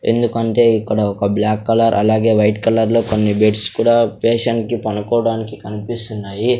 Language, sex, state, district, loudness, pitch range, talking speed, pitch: Telugu, male, Andhra Pradesh, Sri Satya Sai, -16 LUFS, 105-115 Hz, 135 wpm, 110 Hz